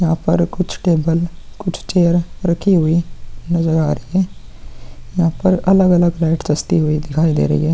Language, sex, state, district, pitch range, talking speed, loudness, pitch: Hindi, male, Bihar, Vaishali, 155-175 Hz, 180 wpm, -16 LUFS, 170 Hz